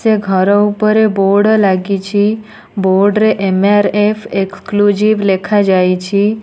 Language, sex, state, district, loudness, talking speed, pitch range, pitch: Odia, female, Odisha, Nuapada, -12 LUFS, 95 wpm, 195-215 Hz, 205 Hz